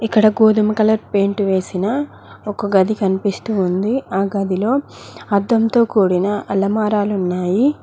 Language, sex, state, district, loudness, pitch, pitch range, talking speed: Telugu, female, Telangana, Mahabubabad, -17 LUFS, 205 Hz, 195-220 Hz, 115 wpm